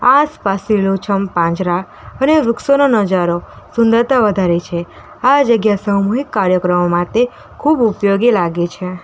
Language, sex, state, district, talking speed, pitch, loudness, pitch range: Gujarati, female, Gujarat, Valsad, 120 wpm, 200 Hz, -15 LUFS, 180-240 Hz